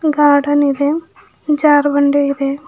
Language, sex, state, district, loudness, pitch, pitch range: Kannada, female, Karnataka, Bidar, -14 LUFS, 290 Hz, 285-300 Hz